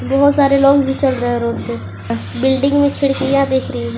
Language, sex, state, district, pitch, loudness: Hindi, female, Jharkhand, Garhwa, 270 Hz, -15 LUFS